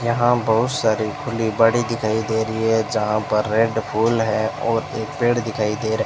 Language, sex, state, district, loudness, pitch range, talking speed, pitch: Hindi, male, Rajasthan, Bikaner, -20 LUFS, 110-115 Hz, 205 wpm, 110 Hz